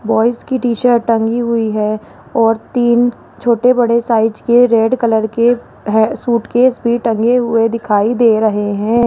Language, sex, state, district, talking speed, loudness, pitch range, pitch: Hindi, female, Rajasthan, Jaipur, 165 wpm, -14 LUFS, 225-240 Hz, 230 Hz